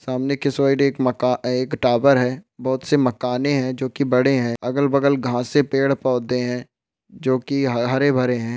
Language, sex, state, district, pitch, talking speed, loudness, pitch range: Hindi, male, Rajasthan, Nagaur, 130 Hz, 180 wpm, -20 LUFS, 125-140 Hz